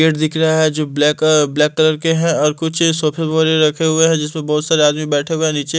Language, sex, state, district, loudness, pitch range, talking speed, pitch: Hindi, male, Delhi, New Delhi, -15 LUFS, 150-160 Hz, 250 wpm, 155 Hz